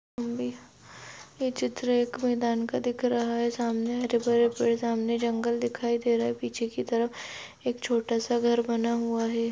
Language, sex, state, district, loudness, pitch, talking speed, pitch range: Hindi, female, Chhattisgarh, Bastar, -28 LUFS, 235 Hz, 175 wpm, 230-240 Hz